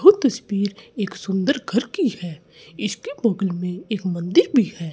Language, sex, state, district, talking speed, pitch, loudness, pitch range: Hindi, male, Chandigarh, Chandigarh, 170 wpm, 200 Hz, -22 LUFS, 180-245 Hz